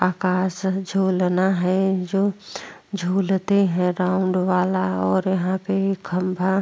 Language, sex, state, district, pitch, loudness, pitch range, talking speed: Hindi, female, Chhattisgarh, Korba, 185 Hz, -21 LUFS, 180-190 Hz, 120 wpm